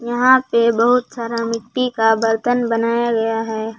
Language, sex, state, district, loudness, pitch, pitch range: Hindi, female, Jharkhand, Palamu, -17 LUFS, 230 Hz, 225-240 Hz